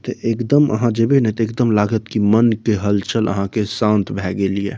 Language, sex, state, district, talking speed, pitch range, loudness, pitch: Maithili, male, Bihar, Saharsa, 250 wpm, 100-115 Hz, -17 LUFS, 110 Hz